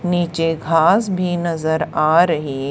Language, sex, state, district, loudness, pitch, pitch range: Hindi, female, Haryana, Charkhi Dadri, -17 LUFS, 165 Hz, 155-175 Hz